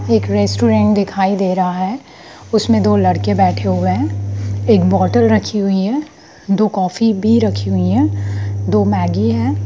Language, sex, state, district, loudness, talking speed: Hindi, female, Bihar, Sitamarhi, -15 LUFS, 170 wpm